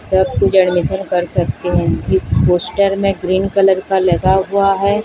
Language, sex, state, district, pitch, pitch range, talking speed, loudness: Hindi, female, Odisha, Sambalpur, 190 Hz, 180-195 Hz, 180 wpm, -15 LUFS